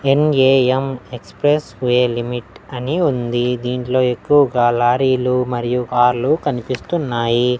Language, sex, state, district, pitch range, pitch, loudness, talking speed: Telugu, male, Andhra Pradesh, Annamaya, 120-135 Hz, 125 Hz, -17 LUFS, 95 wpm